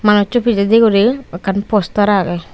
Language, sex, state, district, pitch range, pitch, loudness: Chakma, female, Tripura, Unakoti, 200-225 Hz, 205 Hz, -14 LUFS